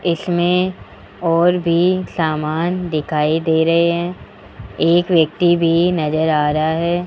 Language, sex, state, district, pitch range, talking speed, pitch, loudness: Hindi, male, Rajasthan, Jaipur, 160-175 Hz, 125 wpm, 170 Hz, -17 LUFS